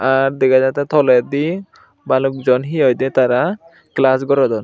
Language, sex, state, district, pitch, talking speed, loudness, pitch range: Chakma, male, Tripura, Unakoti, 135 Hz, 115 wpm, -15 LUFS, 130-145 Hz